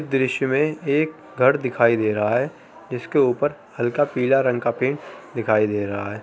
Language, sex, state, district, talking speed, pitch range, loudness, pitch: Hindi, male, Uttar Pradesh, Gorakhpur, 195 wpm, 115-140 Hz, -21 LUFS, 125 Hz